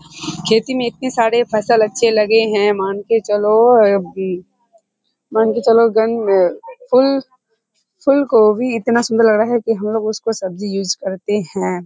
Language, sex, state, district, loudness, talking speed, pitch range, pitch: Hindi, female, Bihar, Kishanganj, -15 LUFS, 150 wpm, 205-235 Hz, 220 Hz